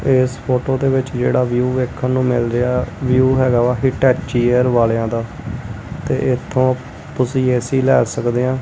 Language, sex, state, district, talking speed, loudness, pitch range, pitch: Punjabi, male, Punjab, Kapurthala, 175 wpm, -17 LUFS, 120-130 Hz, 125 Hz